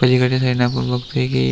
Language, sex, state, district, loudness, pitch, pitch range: Marathi, male, Maharashtra, Aurangabad, -18 LUFS, 125 Hz, 80-125 Hz